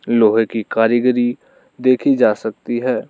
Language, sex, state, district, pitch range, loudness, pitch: Hindi, male, Arunachal Pradesh, Lower Dibang Valley, 110-125 Hz, -16 LUFS, 120 Hz